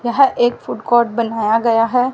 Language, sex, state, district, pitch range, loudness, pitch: Hindi, female, Haryana, Rohtak, 230-245 Hz, -15 LUFS, 240 Hz